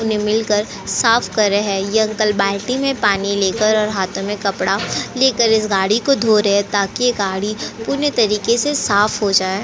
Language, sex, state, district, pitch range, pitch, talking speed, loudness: Hindi, female, Uttar Pradesh, Jyotiba Phule Nagar, 200-225 Hz, 210 Hz, 185 wpm, -17 LUFS